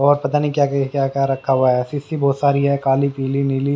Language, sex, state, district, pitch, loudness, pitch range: Hindi, male, Haryana, Jhajjar, 140 Hz, -18 LUFS, 135-140 Hz